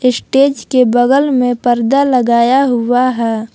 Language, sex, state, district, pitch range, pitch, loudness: Hindi, female, Jharkhand, Palamu, 240-265 Hz, 250 Hz, -12 LUFS